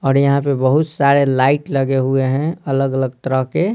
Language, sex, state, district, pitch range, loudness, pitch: Hindi, male, Bihar, Patna, 130-140 Hz, -16 LUFS, 135 Hz